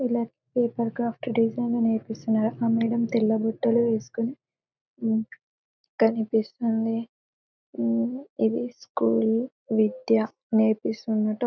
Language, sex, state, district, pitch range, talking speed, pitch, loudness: Telugu, female, Telangana, Karimnagar, 220-235 Hz, 85 wpm, 225 Hz, -26 LUFS